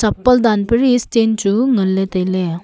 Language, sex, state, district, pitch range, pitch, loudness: Wancho, female, Arunachal Pradesh, Longding, 190-235 Hz, 215 Hz, -15 LUFS